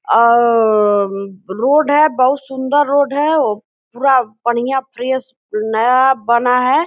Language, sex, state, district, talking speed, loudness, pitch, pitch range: Hindi, female, Bihar, Purnia, 150 wpm, -14 LUFS, 255 Hz, 225-270 Hz